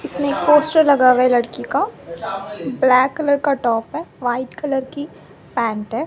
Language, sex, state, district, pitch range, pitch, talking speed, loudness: Hindi, female, Haryana, Rohtak, 235-290 Hz, 265 Hz, 180 wpm, -18 LUFS